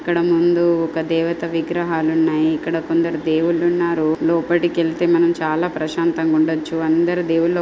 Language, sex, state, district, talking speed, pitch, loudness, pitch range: Telugu, female, Andhra Pradesh, Srikakulam, 120 wpm, 165 Hz, -18 LUFS, 160-170 Hz